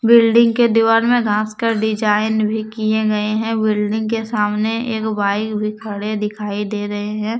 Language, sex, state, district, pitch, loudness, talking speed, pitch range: Hindi, female, Jharkhand, Deoghar, 215 Hz, -17 LUFS, 180 wpm, 210-225 Hz